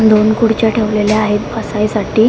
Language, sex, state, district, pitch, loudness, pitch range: Marathi, female, Maharashtra, Mumbai Suburban, 215 Hz, -14 LUFS, 210-225 Hz